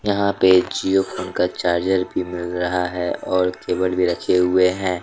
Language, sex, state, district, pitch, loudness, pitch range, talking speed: Hindi, male, Jharkhand, Deoghar, 90 Hz, -20 LUFS, 90-95 Hz, 190 wpm